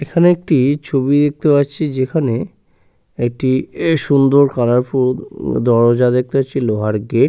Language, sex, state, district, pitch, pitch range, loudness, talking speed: Bengali, male, West Bengal, Purulia, 135 Hz, 125-145 Hz, -15 LUFS, 130 wpm